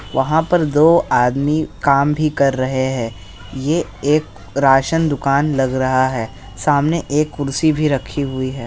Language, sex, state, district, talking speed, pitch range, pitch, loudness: Hindi, male, Bihar, Begusarai, 160 wpm, 130-150 Hz, 140 Hz, -17 LUFS